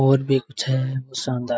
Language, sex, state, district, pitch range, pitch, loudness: Rajasthani, male, Rajasthan, Churu, 130-135 Hz, 130 Hz, -23 LUFS